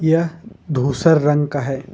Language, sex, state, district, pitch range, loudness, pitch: Hindi, male, Jharkhand, Ranchi, 140-165 Hz, -18 LUFS, 150 Hz